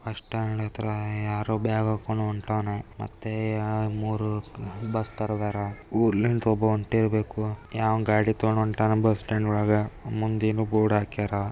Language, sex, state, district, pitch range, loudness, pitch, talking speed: Kannada, female, Karnataka, Bijapur, 105-110 Hz, -26 LUFS, 110 Hz, 125 wpm